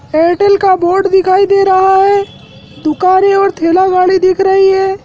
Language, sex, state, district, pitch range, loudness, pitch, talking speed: Hindi, male, Madhya Pradesh, Dhar, 370-390 Hz, -10 LUFS, 380 Hz, 165 wpm